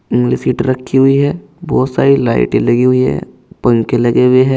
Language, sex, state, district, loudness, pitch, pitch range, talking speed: Hindi, male, Uttar Pradesh, Saharanpur, -13 LUFS, 130 Hz, 120-135 Hz, 185 wpm